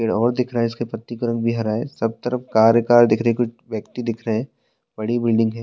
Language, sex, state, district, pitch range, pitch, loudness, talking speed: Hindi, male, Uttarakhand, Tehri Garhwal, 115-120 Hz, 115 Hz, -20 LUFS, 300 wpm